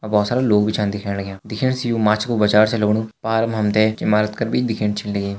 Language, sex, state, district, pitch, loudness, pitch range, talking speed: Hindi, male, Uttarakhand, Uttarkashi, 105 Hz, -19 LUFS, 105-110 Hz, 280 wpm